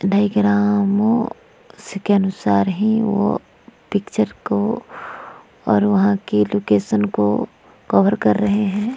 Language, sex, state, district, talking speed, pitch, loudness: Hindi, female, Bihar, Vaishali, 105 wpm, 200 Hz, -18 LUFS